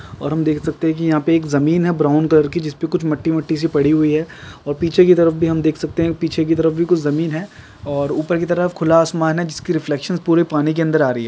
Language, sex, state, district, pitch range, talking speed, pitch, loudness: Hindi, male, Andhra Pradesh, Guntur, 150-165 Hz, 285 wpm, 160 Hz, -17 LUFS